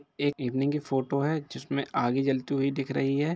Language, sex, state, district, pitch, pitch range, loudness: Hindi, male, Bihar, Gopalganj, 140 Hz, 135-145 Hz, -29 LUFS